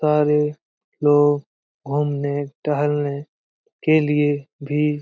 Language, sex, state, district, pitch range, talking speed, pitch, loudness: Hindi, male, Bihar, Jamui, 145-150 Hz, 95 wpm, 145 Hz, -21 LUFS